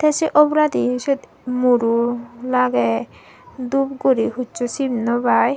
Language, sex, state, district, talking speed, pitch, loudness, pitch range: Chakma, female, Tripura, Dhalai, 120 wpm, 250 Hz, -19 LUFS, 230-275 Hz